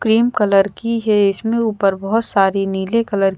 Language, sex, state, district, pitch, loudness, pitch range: Hindi, female, Madhya Pradesh, Bhopal, 205 Hz, -17 LUFS, 195-230 Hz